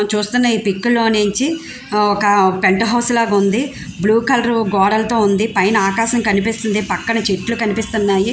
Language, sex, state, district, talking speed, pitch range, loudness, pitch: Telugu, female, Andhra Pradesh, Visakhapatnam, 150 wpm, 200-230 Hz, -16 LUFS, 215 Hz